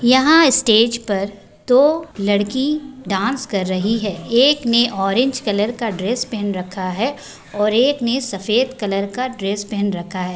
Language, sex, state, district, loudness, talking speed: Hindi, male, Bihar, Begusarai, -18 LUFS, 160 wpm